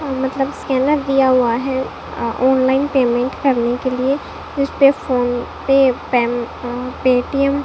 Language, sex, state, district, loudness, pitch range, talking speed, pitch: Hindi, female, Rajasthan, Bikaner, -17 LUFS, 245-275 Hz, 150 wpm, 260 Hz